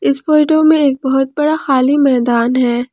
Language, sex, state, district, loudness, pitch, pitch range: Hindi, female, Jharkhand, Palamu, -13 LUFS, 270 Hz, 255-305 Hz